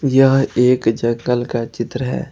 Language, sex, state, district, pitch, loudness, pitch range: Hindi, male, Jharkhand, Ranchi, 125 Hz, -17 LUFS, 120-135 Hz